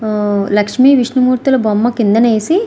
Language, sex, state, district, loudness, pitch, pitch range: Telugu, female, Andhra Pradesh, Srikakulam, -12 LUFS, 230 Hz, 210-260 Hz